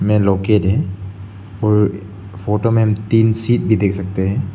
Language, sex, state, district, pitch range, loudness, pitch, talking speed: Hindi, male, Arunachal Pradesh, Lower Dibang Valley, 95-110 Hz, -16 LUFS, 105 Hz, 170 wpm